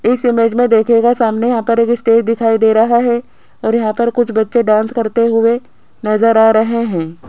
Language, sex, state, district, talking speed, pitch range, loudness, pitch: Hindi, female, Rajasthan, Jaipur, 200 wpm, 225-235 Hz, -13 LUFS, 230 Hz